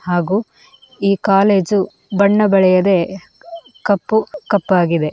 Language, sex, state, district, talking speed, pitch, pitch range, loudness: Kannada, female, Karnataka, Dakshina Kannada, 80 wpm, 200 Hz, 185-215 Hz, -15 LUFS